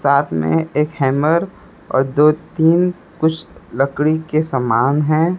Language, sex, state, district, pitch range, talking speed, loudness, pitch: Hindi, male, Chhattisgarh, Raipur, 135-160 Hz, 135 wpm, -17 LUFS, 150 Hz